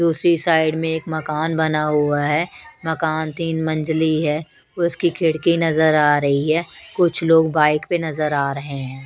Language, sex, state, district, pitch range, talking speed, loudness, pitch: Hindi, female, Bihar, West Champaran, 150-165 Hz, 170 wpm, -19 LUFS, 160 Hz